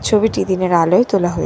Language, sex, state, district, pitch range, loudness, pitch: Bengali, female, West Bengal, Dakshin Dinajpur, 175-215 Hz, -15 LUFS, 185 Hz